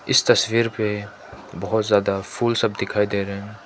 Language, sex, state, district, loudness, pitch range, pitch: Hindi, male, Manipur, Imphal West, -21 LUFS, 100-110 Hz, 105 Hz